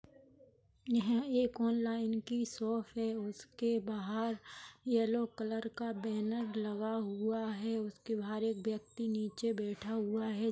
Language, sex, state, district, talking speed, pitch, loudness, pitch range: Hindi, female, Chhattisgarh, Raigarh, 130 wpm, 225 Hz, -37 LUFS, 215-230 Hz